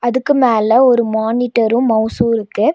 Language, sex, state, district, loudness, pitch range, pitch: Tamil, female, Tamil Nadu, Nilgiris, -14 LUFS, 225-245 Hz, 235 Hz